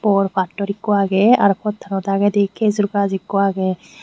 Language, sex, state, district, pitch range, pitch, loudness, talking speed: Chakma, female, Tripura, Unakoti, 195-205 Hz, 200 Hz, -18 LUFS, 165 wpm